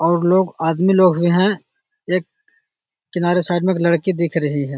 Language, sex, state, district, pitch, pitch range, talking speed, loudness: Magahi, male, Bihar, Jahanabad, 175 Hz, 170-190 Hz, 200 wpm, -17 LUFS